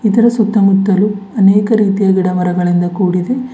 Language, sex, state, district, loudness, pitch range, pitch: Kannada, female, Karnataka, Bidar, -12 LUFS, 185-215 Hz, 200 Hz